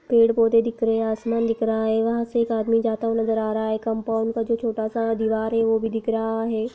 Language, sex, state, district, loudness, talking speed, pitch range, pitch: Hindi, female, Bihar, Gaya, -22 LUFS, 265 wpm, 225-230 Hz, 225 Hz